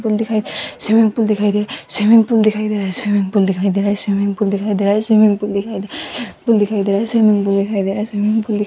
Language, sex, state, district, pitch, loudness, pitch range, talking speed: Hindi, female, Rajasthan, Jaipur, 210 Hz, -16 LUFS, 200-220 Hz, 320 wpm